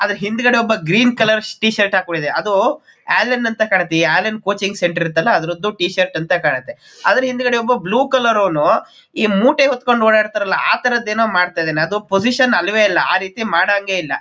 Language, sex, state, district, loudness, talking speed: Kannada, male, Karnataka, Mysore, -15 LUFS, 185 wpm